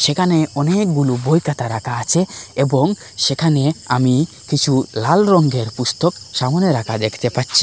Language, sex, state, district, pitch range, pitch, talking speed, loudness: Bengali, male, Assam, Hailakandi, 125-160 Hz, 140 Hz, 135 wpm, -17 LUFS